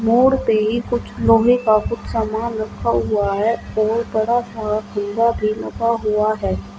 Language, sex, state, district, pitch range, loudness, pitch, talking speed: Hindi, female, Uttar Pradesh, Shamli, 210-230 Hz, -19 LUFS, 220 Hz, 170 wpm